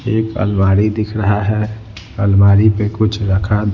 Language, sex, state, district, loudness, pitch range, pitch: Hindi, male, Bihar, Patna, -15 LUFS, 100-110 Hz, 105 Hz